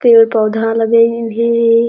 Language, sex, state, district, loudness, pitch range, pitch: Chhattisgarhi, female, Chhattisgarh, Jashpur, -12 LUFS, 225-235 Hz, 230 Hz